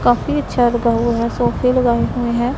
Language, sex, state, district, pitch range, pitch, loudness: Hindi, female, Punjab, Pathankot, 230-240 Hz, 235 Hz, -17 LUFS